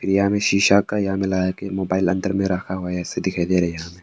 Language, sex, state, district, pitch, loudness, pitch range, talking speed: Hindi, male, Arunachal Pradesh, Papum Pare, 95 Hz, -21 LUFS, 90-100 Hz, 270 wpm